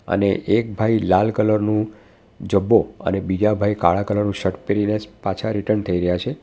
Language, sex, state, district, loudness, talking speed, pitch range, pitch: Gujarati, male, Gujarat, Valsad, -20 LUFS, 195 wpm, 95-105 Hz, 105 Hz